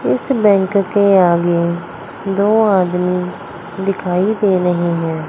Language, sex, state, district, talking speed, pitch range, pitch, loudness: Hindi, female, Chandigarh, Chandigarh, 115 wpm, 175-200 Hz, 190 Hz, -15 LUFS